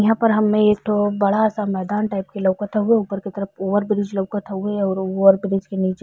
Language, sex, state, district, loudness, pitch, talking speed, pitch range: Bhojpuri, female, Uttar Pradesh, Ghazipur, -20 LUFS, 200 Hz, 260 wpm, 195-210 Hz